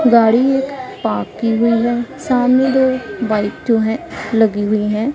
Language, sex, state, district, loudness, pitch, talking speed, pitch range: Hindi, female, Punjab, Pathankot, -16 LUFS, 235 Hz, 165 wpm, 225-260 Hz